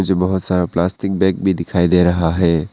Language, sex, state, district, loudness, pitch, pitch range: Hindi, male, Arunachal Pradesh, Papum Pare, -16 LUFS, 90 Hz, 85-95 Hz